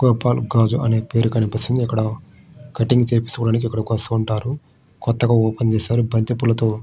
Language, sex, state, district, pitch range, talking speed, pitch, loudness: Telugu, male, Andhra Pradesh, Srikakulam, 110-120 Hz, 140 wpm, 115 Hz, -19 LUFS